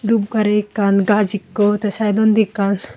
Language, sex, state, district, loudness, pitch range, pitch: Chakma, female, Tripura, Unakoti, -17 LUFS, 200-215 Hz, 210 Hz